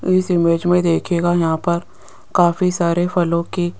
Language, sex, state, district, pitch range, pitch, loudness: Hindi, female, Rajasthan, Jaipur, 170-180 Hz, 175 Hz, -17 LUFS